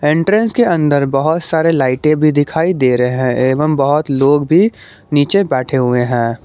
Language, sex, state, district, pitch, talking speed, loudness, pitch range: Hindi, male, Jharkhand, Garhwa, 145 Hz, 175 wpm, -13 LUFS, 130-160 Hz